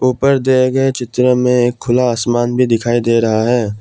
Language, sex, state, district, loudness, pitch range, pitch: Hindi, male, Assam, Kamrup Metropolitan, -14 LUFS, 120-130 Hz, 125 Hz